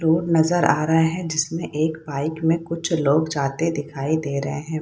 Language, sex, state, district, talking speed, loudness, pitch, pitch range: Hindi, female, Bihar, Saharsa, 200 wpm, -22 LUFS, 160 Hz, 150-165 Hz